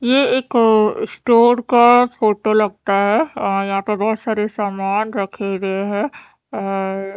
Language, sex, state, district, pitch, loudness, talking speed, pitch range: Hindi, female, Haryana, Charkhi Dadri, 215 Hz, -17 LUFS, 125 wpm, 195-240 Hz